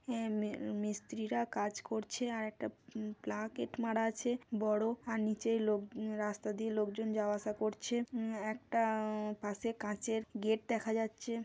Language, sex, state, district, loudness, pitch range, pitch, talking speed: Bengali, female, West Bengal, Kolkata, -38 LUFS, 215-230 Hz, 220 Hz, 145 wpm